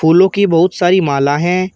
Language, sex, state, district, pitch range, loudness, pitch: Hindi, male, Uttar Pradesh, Shamli, 165-185 Hz, -12 LUFS, 175 Hz